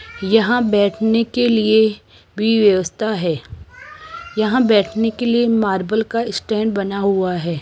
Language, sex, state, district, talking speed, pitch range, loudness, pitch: Hindi, female, Rajasthan, Jaipur, 135 wpm, 200-225 Hz, -17 LUFS, 220 Hz